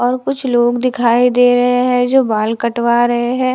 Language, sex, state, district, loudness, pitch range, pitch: Hindi, female, Haryana, Charkhi Dadri, -14 LUFS, 240-250 Hz, 245 Hz